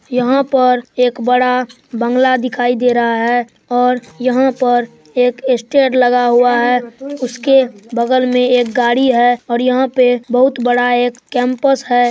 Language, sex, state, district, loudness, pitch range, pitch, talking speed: Hindi, female, Bihar, Supaul, -14 LUFS, 245-255 Hz, 250 Hz, 155 wpm